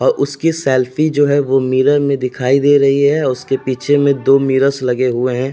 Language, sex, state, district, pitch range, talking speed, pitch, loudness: Hindi, male, Uttar Pradesh, Jalaun, 130-145 Hz, 215 wpm, 135 Hz, -14 LUFS